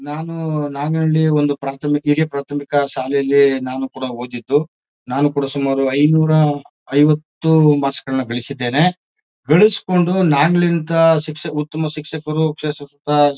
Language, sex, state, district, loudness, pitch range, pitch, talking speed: Kannada, male, Karnataka, Mysore, -17 LUFS, 140-160 Hz, 145 Hz, 105 wpm